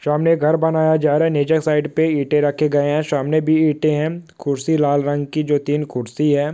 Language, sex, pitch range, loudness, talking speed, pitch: Hindi, male, 145-155 Hz, -18 LUFS, 110 wpm, 150 Hz